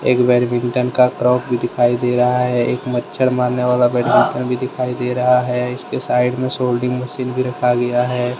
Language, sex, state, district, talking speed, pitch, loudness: Hindi, male, Jharkhand, Deoghar, 200 wpm, 125 Hz, -17 LUFS